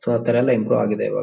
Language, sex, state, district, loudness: Kannada, male, Karnataka, Shimoga, -19 LUFS